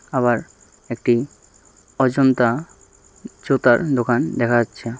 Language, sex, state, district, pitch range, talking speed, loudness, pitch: Bengali, male, Tripura, West Tripura, 110-130 Hz, 85 wpm, -19 LUFS, 120 Hz